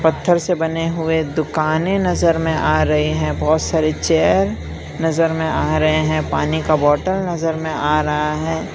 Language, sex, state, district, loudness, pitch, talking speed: Hindi, male, Gujarat, Valsad, -18 LUFS, 155 Hz, 180 wpm